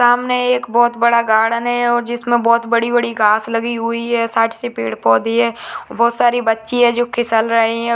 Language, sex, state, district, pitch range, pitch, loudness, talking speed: Hindi, female, Uttarakhand, Tehri Garhwal, 225-240 Hz, 235 Hz, -15 LUFS, 180 wpm